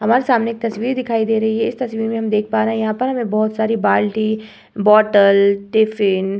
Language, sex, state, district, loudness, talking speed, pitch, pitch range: Hindi, female, Uttar Pradesh, Hamirpur, -17 LUFS, 235 wpm, 220 Hz, 210-225 Hz